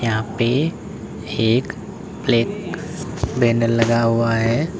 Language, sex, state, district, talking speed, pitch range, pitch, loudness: Hindi, male, Uttar Pradesh, Lalitpur, 100 wpm, 115-120 Hz, 115 Hz, -20 LUFS